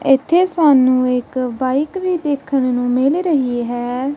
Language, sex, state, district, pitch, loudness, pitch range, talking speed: Punjabi, female, Punjab, Kapurthala, 265 Hz, -16 LUFS, 250-300 Hz, 145 wpm